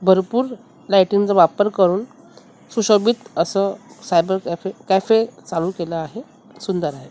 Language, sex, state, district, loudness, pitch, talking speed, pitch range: Marathi, female, Maharashtra, Mumbai Suburban, -19 LUFS, 195 Hz, 125 wpm, 185-225 Hz